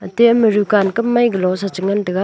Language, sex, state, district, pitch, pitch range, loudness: Wancho, female, Arunachal Pradesh, Longding, 205 Hz, 195-235 Hz, -15 LUFS